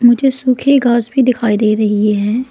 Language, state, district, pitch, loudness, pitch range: Hindi, Arunachal Pradesh, Lower Dibang Valley, 240 Hz, -13 LUFS, 215-260 Hz